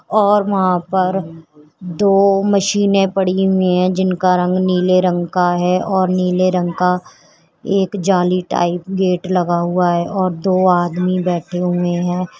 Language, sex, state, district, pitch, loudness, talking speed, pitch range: Hindi, female, Uttar Pradesh, Shamli, 185 Hz, -16 LUFS, 160 wpm, 180-190 Hz